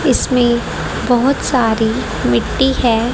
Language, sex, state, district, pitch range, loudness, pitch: Hindi, female, Haryana, Rohtak, 225-260 Hz, -15 LUFS, 245 Hz